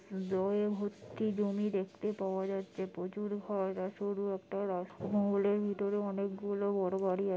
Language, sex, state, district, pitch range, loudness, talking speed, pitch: Bengali, female, West Bengal, Jhargram, 190-205 Hz, -35 LUFS, 140 wpm, 200 Hz